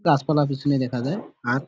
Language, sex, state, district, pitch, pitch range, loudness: Bengali, male, West Bengal, Purulia, 140 Hz, 130-150 Hz, -23 LUFS